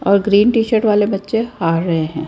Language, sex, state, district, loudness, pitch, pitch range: Hindi, female, Rajasthan, Jaipur, -15 LUFS, 200 Hz, 170-220 Hz